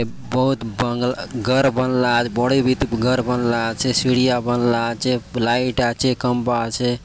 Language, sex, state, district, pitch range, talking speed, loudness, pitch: Halbi, male, Chhattisgarh, Bastar, 120-130 Hz, 155 wpm, -19 LUFS, 125 Hz